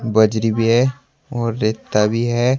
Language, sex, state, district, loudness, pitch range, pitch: Hindi, male, Uttar Pradesh, Saharanpur, -18 LUFS, 110-125 Hz, 115 Hz